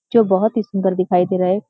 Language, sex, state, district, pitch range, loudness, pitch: Hindi, female, Uttarakhand, Uttarkashi, 185-215 Hz, -17 LUFS, 190 Hz